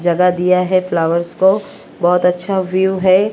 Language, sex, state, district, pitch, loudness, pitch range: Hindi, female, Maharashtra, Mumbai Suburban, 180 Hz, -15 LUFS, 175-190 Hz